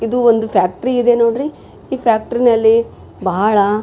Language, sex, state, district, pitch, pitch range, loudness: Kannada, female, Karnataka, Raichur, 230 Hz, 215-245 Hz, -15 LUFS